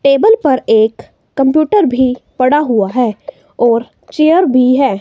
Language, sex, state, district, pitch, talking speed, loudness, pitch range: Hindi, female, Himachal Pradesh, Shimla, 260 Hz, 145 wpm, -12 LUFS, 240-300 Hz